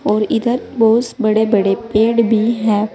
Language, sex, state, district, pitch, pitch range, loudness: Hindi, female, Uttar Pradesh, Saharanpur, 220 Hz, 215-230 Hz, -15 LUFS